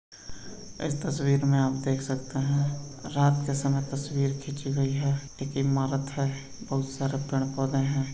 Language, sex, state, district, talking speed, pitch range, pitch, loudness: Hindi, male, Uttar Pradesh, Deoria, 160 wpm, 135-140 Hz, 140 Hz, -28 LUFS